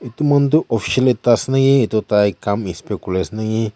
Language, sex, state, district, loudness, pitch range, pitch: Nagamese, male, Nagaland, Kohima, -17 LUFS, 105-130 Hz, 110 Hz